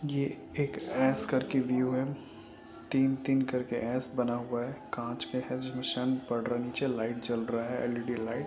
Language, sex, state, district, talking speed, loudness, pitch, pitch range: Hindi, male, Uttar Pradesh, Etah, 165 wpm, -32 LUFS, 125 Hz, 120-130 Hz